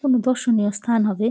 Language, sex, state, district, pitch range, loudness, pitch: Bengali, female, West Bengal, Jalpaiguri, 210-250 Hz, -20 LUFS, 230 Hz